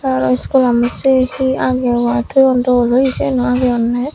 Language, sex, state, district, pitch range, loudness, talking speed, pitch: Chakma, female, Tripura, Dhalai, 240-260 Hz, -14 LUFS, 175 wpm, 250 Hz